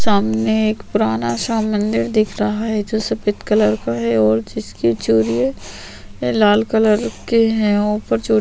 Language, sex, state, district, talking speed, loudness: Hindi, female, Chhattisgarh, Sukma, 155 wpm, -17 LUFS